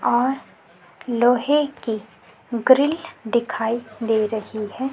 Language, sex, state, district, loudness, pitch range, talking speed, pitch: Hindi, female, Chhattisgarh, Sukma, -21 LUFS, 220-265 Hz, 100 wpm, 240 Hz